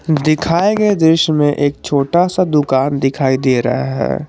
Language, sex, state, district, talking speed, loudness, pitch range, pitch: Hindi, male, Jharkhand, Garhwa, 165 wpm, -14 LUFS, 130-165 Hz, 145 Hz